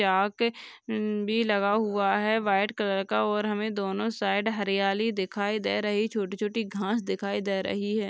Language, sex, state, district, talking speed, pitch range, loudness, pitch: Hindi, female, Maharashtra, Sindhudurg, 180 wpm, 200-215 Hz, -27 LUFS, 205 Hz